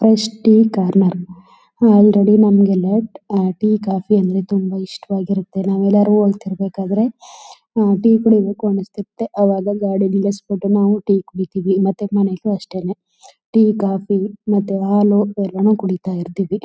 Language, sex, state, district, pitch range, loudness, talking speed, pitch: Kannada, female, Karnataka, Chamarajanagar, 195-210 Hz, -16 LUFS, 125 wpm, 200 Hz